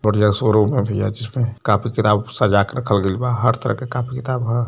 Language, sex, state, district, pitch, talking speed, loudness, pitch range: Hindi, male, Uttar Pradesh, Varanasi, 115 Hz, 230 wpm, -19 LUFS, 105-125 Hz